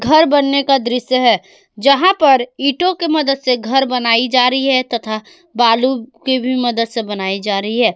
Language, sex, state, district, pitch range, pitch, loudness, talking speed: Hindi, female, Jharkhand, Garhwa, 230-275 Hz, 255 Hz, -14 LUFS, 195 wpm